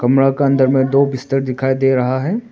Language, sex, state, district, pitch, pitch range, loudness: Hindi, male, Arunachal Pradesh, Papum Pare, 135 Hz, 130-135 Hz, -15 LUFS